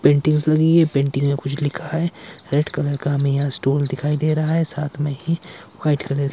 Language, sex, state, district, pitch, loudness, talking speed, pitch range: Hindi, male, Himachal Pradesh, Shimla, 145 Hz, -20 LUFS, 225 wpm, 140-155 Hz